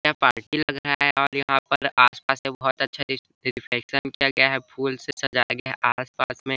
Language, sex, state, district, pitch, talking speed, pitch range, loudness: Hindi, male, Chhattisgarh, Bilaspur, 135 Hz, 230 wpm, 130-140 Hz, -23 LUFS